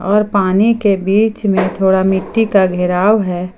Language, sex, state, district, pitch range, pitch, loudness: Hindi, female, Jharkhand, Ranchi, 185-210 Hz, 195 Hz, -13 LUFS